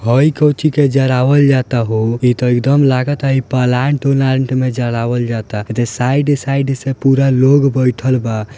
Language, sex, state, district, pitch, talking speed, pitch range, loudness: Bhojpuri, male, Bihar, Gopalganj, 130 Hz, 190 wpm, 120-135 Hz, -14 LUFS